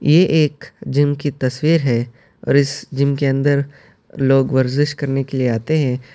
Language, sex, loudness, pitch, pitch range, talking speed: Urdu, male, -17 LUFS, 140 Hz, 135-145 Hz, 165 wpm